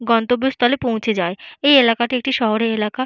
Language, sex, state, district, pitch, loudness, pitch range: Bengali, female, West Bengal, Purulia, 235 Hz, -17 LUFS, 225-255 Hz